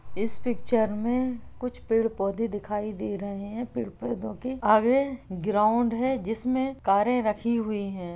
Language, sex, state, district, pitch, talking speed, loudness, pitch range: Hindi, female, Bihar, Sitamarhi, 225 Hz, 140 wpm, -27 LUFS, 210-245 Hz